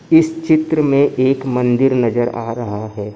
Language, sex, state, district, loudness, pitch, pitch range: Hindi, male, Maharashtra, Gondia, -16 LUFS, 130 Hz, 120-145 Hz